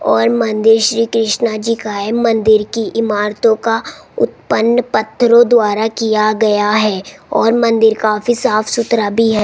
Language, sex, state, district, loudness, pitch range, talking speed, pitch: Hindi, female, Rajasthan, Jaipur, -13 LUFS, 215-230 Hz, 155 wpm, 225 Hz